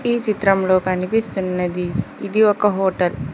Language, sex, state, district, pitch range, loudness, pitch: Telugu, female, Telangana, Hyderabad, 180-210 Hz, -19 LUFS, 190 Hz